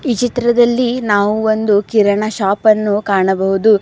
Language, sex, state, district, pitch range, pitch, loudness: Kannada, female, Karnataka, Bidar, 205-240 Hz, 215 Hz, -14 LUFS